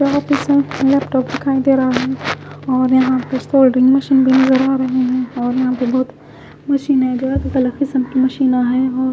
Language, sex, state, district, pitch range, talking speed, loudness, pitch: Hindi, female, Haryana, Charkhi Dadri, 255-270 Hz, 195 wpm, -15 LUFS, 260 Hz